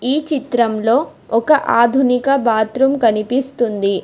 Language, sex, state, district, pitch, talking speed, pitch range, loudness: Telugu, female, Telangana, Hyderabad, 245 Hz, 90 wpm, 225-270 Hz, -16 LUFS